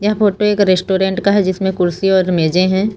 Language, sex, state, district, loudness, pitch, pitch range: Hindi, female, Uttar Pradesh, Lucknow, -14 LUFS, 190 Hz, 185-205 Hz